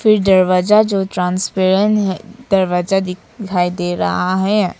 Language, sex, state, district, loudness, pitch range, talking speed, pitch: Hindi, female, Arunachal Pradesh, Papum Pare, -15 LUFS, 180-210 Hz, 125 wpm, 190 Hz